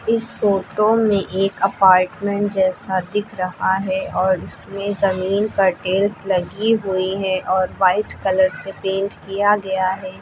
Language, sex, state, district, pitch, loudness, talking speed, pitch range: Hindi, female, Uttar Pradesh, Lucknow, 195 Hz, -19 LUFS, 145 wpm, 185-205 Hz